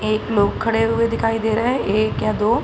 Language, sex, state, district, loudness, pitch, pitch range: Hindi, female, Uttar Pradesh, Hamirpur, -19 LUFS, 225 Hz, 215-230 Hz